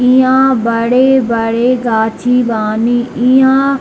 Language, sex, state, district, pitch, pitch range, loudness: Hindi, male, Bihar, Darbhanga, 245 Hz, 230-260 Hz, -11 LUFS